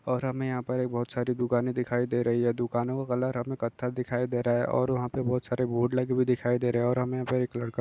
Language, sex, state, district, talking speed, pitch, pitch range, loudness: Hindi, male, Chhattisgarh, Balrampur, 305 wpm, 125 Hz, 120-125 Hz, -29 LUFS